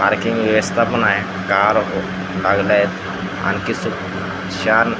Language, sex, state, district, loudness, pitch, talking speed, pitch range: Marathi, male, Maharashtra, Gondia, -18 LUFS, 100 Hz, 95 wpm, 95-110 Hz